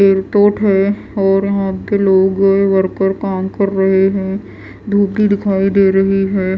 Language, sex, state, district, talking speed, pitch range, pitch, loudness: Hindi, female, Bihar, West Champaran, 155 wpm, 190-200 Hz, 195 Hz, -14 LUFS